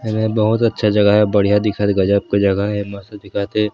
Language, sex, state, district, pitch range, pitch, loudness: Chhattisgarhi, male, Chhattisgarh, Sarguja, 100-105 Hz, 105 Hz, -16 LUFS